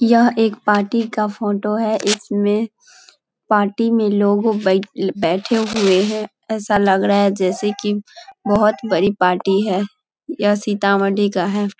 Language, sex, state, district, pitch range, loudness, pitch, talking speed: Hindi, female, Bihar, Sitamarhi, 200-220 Hz, -17 LUFS, 205 Hz, 155 wpm